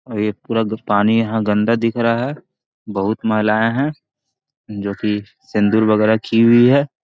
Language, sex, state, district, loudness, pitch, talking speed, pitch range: Magahi, male, Bihar, Jahanabad, -17 LUFS, 110 Hz, 180 wpm, 105-115 Hz